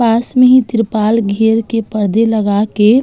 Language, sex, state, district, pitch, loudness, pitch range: Hindi, female, Uttar Pradesh, Jalaun, 225 Hz, -12 LUFS, 215-230 Hz